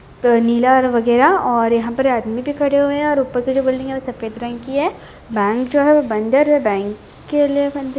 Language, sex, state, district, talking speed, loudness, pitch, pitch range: Hindi, female, Bihar, Bhagalpur, 210 wpm, -16 LUFS, 260 Hz, 235-285 Hz